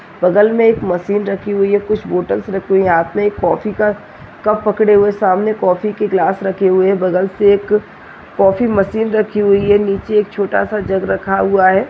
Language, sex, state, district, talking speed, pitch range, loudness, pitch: Hindi, female, Chhattisgarh, Balrampur, 225 wpm, 195-210 Hz, -14 LUFS, 200 Hz